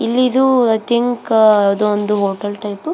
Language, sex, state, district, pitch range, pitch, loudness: Kannada, female, Karnataka, Belgaum, 205-245 Hz, 220 Hz, -15 LUFS